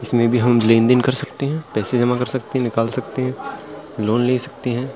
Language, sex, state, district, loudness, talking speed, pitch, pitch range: Hindi, male, Uttar Pradesh, Jalaun, -18 LUFS, 230 wpm, 125 Hz, 120-130 Hz